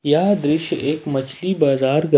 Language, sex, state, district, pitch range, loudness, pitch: Hindi, male, Jharkhand, Ranchi, 140-155 Hz, -19 LUFS, 150 Hz